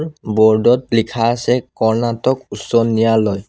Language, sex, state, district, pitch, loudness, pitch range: Assamese, male, Assam, Sonitpur, 115 Hz, -16 LUFS, 110-120 Hz